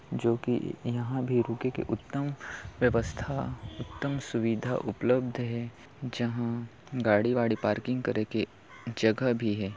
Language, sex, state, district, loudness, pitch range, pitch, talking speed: Hindi, male, Chhattisgarh, Kabirdham, -30 LUFS, 110-125 Hz, 120 Hz, 130 wpm